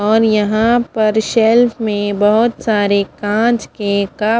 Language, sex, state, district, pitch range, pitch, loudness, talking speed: Hindi, female, Punjab, Fazilka, 205-225 Hz, 215 Hz, -14 LUFS, 110 wpm